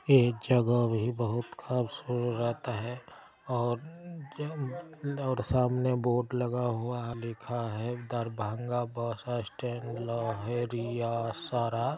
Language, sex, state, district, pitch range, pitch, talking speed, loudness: Maithili, male, Bihar, Darbhanga, 115-125 Hz, 120 Hz, 110 wpm, -32 LUFS